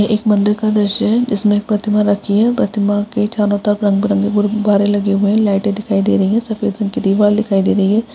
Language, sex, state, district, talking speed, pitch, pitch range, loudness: Hindi, female, Chhattisgarh, Balrampur, 250 wpm, 205 Hz, 205-215 Hz, -15 LUFS